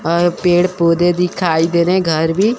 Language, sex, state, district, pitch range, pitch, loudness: Hindi, male, Chandigarh, Chandigarh, 170-180 Hz, 175 Hz, -14 LUFS